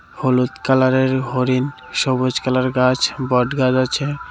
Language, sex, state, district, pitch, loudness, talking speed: Bengali, male, Tripura, West Tripura, 130 Hz, -18 LUFS, 125 wpm